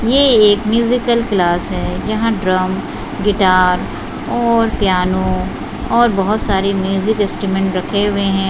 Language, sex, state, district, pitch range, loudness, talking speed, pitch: Hindi, female, Chhattisgarh, Bastar, 185-225 Hz, -15 LUFS, 125 wpm, 200 Hz